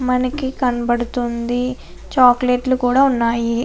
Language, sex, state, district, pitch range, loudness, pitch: Telugu, female, Andhra Pradesh, Anantapur, 240-255 Hz, -17 LUFS, 250 Hz